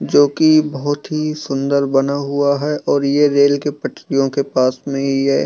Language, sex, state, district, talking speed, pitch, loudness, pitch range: Hindi, male, Bihar, East Champaran, 185 wpm, 140 Hz, -16 LUFS, 140-145 Hz